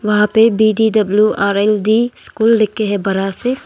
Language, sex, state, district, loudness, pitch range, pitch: Hindi, female, Arunachal Pradesh, Longding, -14 LUFS, 205-220 Hz, 215 Hz